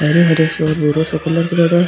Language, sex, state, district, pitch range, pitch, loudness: Rajasthani, female, Rajasthan, Churu, 155-170 Hz, 160 Hz, -15 LUFS